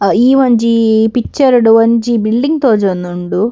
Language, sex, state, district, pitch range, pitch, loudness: Tulu, female, Karnataka, Dakshina Kannada, 215-245 Hz, 230 Hz, -11 LUFS